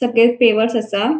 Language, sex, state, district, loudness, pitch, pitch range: Konkani, female, Goa, North and South Goa, -15 LUFS, 230 Hz, 225-240 Hz